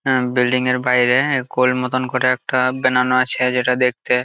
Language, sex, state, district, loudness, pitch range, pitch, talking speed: Bengali, male, West Bengal, Jalpaiguri, -17 LUFS, 125-130 Hz, 125 Hz, 170 wpm